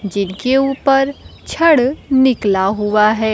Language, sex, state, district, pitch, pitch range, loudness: Hindi, female, Bihar, Kaimur, 250 Hz, 210-270 Hz, -15 LUFS